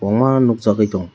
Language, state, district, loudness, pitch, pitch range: Kokborok, Tripura, West Tripura, -16 LUFS, 105 Hz, 100-120 Hz